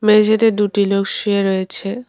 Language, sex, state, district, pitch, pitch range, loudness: Bengali, female, West Bengal, Cooch Behar, 205 Hz, 195-215 Hz, -16 LUFS